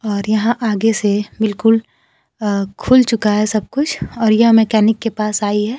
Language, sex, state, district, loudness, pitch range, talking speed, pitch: Hindi, female, Bihar, Kaimur, -15 LUFS, 210-225 Hz, 185 wpm, 220 Hz